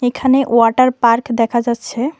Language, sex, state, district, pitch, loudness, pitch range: Bengali, female, Tripura, West Tripura, 240 Hz, -14 LUFS, 235-255 Hz